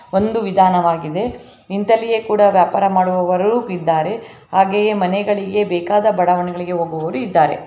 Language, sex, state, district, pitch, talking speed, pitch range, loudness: Kannada, female, Karnataka, Bellary, 190 Hz, 110 wpm, 180-210 Hz, -16 LUFS